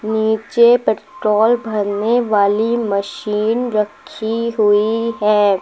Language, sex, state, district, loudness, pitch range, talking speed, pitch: Hindi, female, Uttar Pradesh, Lucknow, -16 LUFS, 210-230 Hz, 85 wpm, 220 Hz